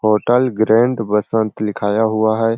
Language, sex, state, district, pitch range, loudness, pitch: Hindi, male, Chhattisgarh, Sarguja, 105-115 Hz, -16 LUFS, 110 Hz